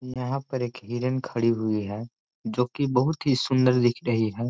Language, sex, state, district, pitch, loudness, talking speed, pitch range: Hindi, male, Chhattisgarh, Korba, 125 Hz, -25 LUFS, 185 wpm, 115-130 Hz